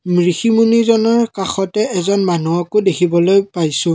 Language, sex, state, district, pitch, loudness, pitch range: Assamese, male, Assam, Kamrup Metropolitan, 190 Hz, -15 LUFS, 175-220 Hz